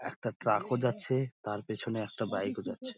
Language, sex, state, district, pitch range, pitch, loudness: Bengali, male, West Bengal, Dakshin Dinajpur, 110-130 Hz, 125 Hz, -34 LUFS